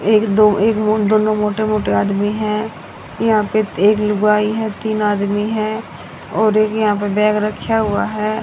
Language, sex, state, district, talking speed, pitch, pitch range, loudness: Hindi, female, Haryana, Rohtak, 165 wpm, 215 Hz, 210-215 Hz, -16 LUFS